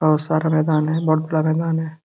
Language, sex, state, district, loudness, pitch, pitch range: Hindi, male, Uttar Pradesh, Gorakhpur, -19 LUFS, 155 Hz, 155-160 Hz